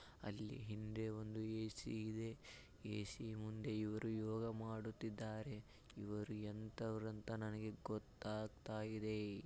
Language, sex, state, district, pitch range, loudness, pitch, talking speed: Kannada, male, Karnataka, Bijapur, 105-110 Hz, -48 LUFS, 110 Hz, 100 wpm